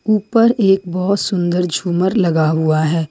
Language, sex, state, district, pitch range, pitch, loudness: Hindi, female, Jharkhand, Ranchi, 165-200 Hz, 180 Hz, -16 LUFS